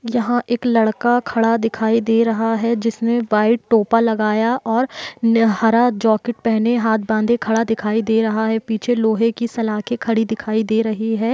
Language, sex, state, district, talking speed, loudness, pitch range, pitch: Hindi, female, Bihar, Jahanabad, 170 wpm, -18 LUFS, 220-235 Hz, 225 Hz